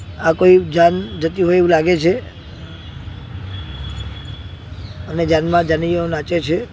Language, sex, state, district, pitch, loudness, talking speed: Gujarati, male, Gujarat, Gandhinagar, 155 Hz, -16 LUFS, 115 wpm